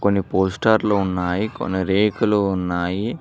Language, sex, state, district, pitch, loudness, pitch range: Telugu, male, Telangana, Mahabubabad, 100 Hz, -20 LUFS, 95-105 Hz